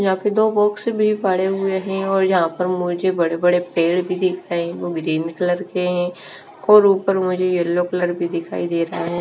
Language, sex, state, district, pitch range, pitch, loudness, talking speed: Hindi, female, Bihar, West Champaran, 175-195 Hz, 180 Hz, -19 LUFS, 195 wpm